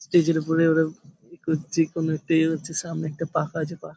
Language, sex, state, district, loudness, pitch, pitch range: Bengali, male, West Bengal, Paschim Medinipur, -24 LUFS, 160 Hz, 155-165 Hz